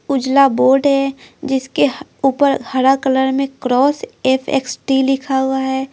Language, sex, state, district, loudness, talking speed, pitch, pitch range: Hindi, female, Bihar, Patna, -16 LUFS, 130 wpm, 270 Hz, 265-275 Hz